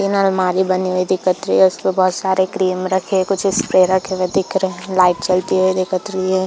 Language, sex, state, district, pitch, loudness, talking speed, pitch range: Hindi, female, Chhattisgarh, Bilaspur, 185 Hz, -17 LUFS, 240 wpm, 185-190 Hz